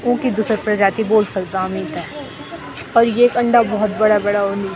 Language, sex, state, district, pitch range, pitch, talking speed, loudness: Garhwali, female, Uttarakhand, Tehri Garhwal, 200-230 Hz, 215 Hz, 175 wpm, -17 LUFS